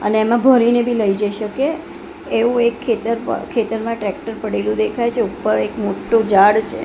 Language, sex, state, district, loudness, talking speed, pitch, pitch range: Gujarati, female, Gujarat, Gandhinagar, -17 LUFS, 195 wpm, 230 Hz, 210-235 Hz